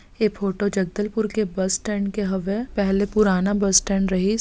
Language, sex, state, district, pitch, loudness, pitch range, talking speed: Chhattisgarhi, female, Chhattisgarh, Bastar, 200 Hz, -22 LUFS, 195-210 Hz, 175 wpm